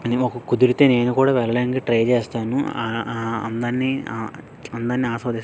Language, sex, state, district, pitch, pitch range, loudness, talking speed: Telugu, male, Andhra Pradesh, Srikakulam, 120 Hz, 115-130 Hz, -21 LUFS, 120 wpm